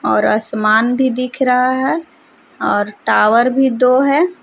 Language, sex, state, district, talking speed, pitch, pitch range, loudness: Hindi, female, Jharkhand, Palamu, 150 wpm, 255 Hz, 235-270 Hz, -14 LUFS